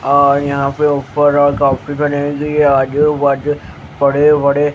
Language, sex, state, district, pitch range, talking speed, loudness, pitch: Hindi, male, Haryana, Jhajjar, 140-145 Hz, 100 wpm, -13 LUFS, 145 Hz